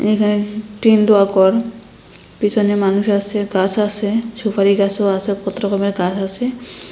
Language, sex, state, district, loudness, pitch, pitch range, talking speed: Bengali, female, Assam, Hailakandi, -16 LUFS, 205 Hz, 200-215 Hz, 140 wpm